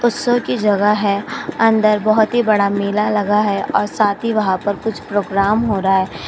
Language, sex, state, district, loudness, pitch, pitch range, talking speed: Hindi, female, Uttar Pradesh, Jyotiba Phule Nagar, -16 LUFS, 210 Hz, 200-225 Hz, 190 wpm